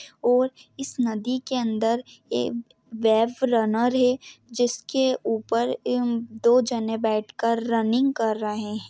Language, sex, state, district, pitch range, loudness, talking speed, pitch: Hindi, female, Jharkhand, Jamtara, 225-250 Hz, -24 LUFS, 130 wpm, 235 Hz